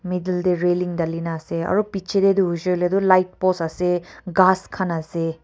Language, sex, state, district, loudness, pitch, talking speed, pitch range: Nagamese, female, Nagaland, Kohima, -21 LUFS, 180 Hz, 200 wpm, 170-185 Hz